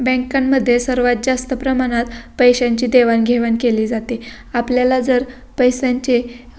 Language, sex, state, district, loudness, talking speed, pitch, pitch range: Marathi, female, Maharashtra, Pune, -16 LUFS, 110 wpm, 245 Hz, 240-255 Hz